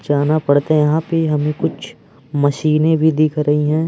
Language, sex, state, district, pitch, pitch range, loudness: Hindi, male, Madhya Pradesh, Umaria, 150 Hz, 145-155 Hz, -16 LUFS